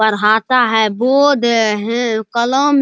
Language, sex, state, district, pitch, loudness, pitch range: Hindi, male, Bihar, Araria, 235 Hz, -14 LUFS, 220-255 Hz